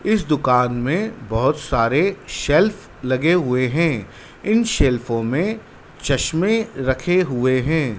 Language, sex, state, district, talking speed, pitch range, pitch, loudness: Hindi, male, Madhya Pradesh, Dhar, 120 wpm, 125-195 Hz, 150 Hz, -19 LUFS